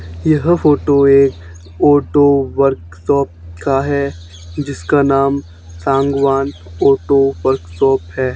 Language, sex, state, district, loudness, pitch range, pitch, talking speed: Hindi, male, Haryana, Charkhi Dadri, -14 LUFS, 85-140 Hz, 135 Hz, 95 wpm